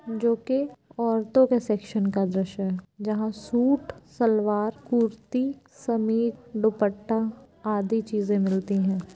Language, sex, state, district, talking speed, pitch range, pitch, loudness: Hindi, female, Uttar Pradesh, Varanasi, 120 wpm, 205-235 Hz, 220 Hz, -26 LUFS